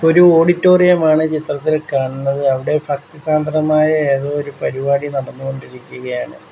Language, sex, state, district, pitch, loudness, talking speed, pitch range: Malayalam, male, Kerala, Kollam, 145 Hz, -16 LUFS, 110 wpm, 135-155 Hz